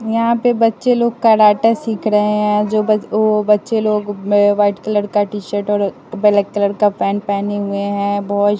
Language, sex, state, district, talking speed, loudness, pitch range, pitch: Hindi, female, Bihar, West Champaran, 195 wpm, -15 LUFS, 205-215 Hz, 210 Hz